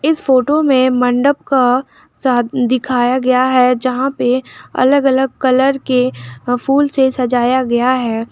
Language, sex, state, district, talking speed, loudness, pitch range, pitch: Hindi, female, Jharkhand, Garhwa, 145 wpm, -14 LUFS, 250-265 Hz, 255 Hz